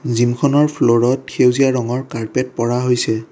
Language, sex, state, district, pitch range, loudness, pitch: Assamese, male, Assam, Kamrup Metropolitan, 120-130 Hz, -16 LUFS, 125 Hz